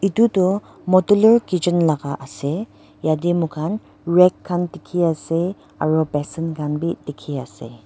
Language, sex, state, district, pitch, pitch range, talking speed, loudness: Nagamese, female, Nagaland, Dimapur, 170 Hz, 155-185 Hz, 135 wpm, -20 LUFS